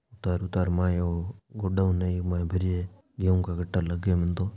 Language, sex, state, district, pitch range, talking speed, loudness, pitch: Marwari, male, Rajasthan, Nagaur, 90-95 Hz, 210 wpm, -28 LUFS, 90 Hz